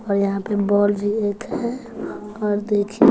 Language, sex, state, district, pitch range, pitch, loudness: Hindi, female, Bihar, West Champaran, 205-215 Hz, 205 Hz, -22 LUFS